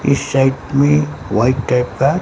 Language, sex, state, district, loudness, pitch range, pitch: Hindi, male, Bihar, Katihar, -16 LUFS, 110-135 Hz, 130 Hz